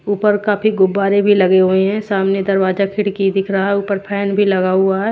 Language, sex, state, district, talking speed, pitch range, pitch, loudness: Hindi, female, Haryana, Jhajjar, 225 wpm, 195-205 Hz, 195 Hz, -15 LUFS